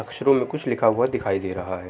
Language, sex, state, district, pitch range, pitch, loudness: Hindi, male, Uttar Pradesh, Jalaun, 95-125 Hz, 110 Hz, -22 LUFS